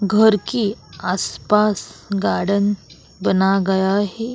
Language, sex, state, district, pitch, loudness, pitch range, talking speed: Hindi, female, Goa, North and South Goa, 200 Hz, -19 LUFS, 190-210 Hz, 95 wpm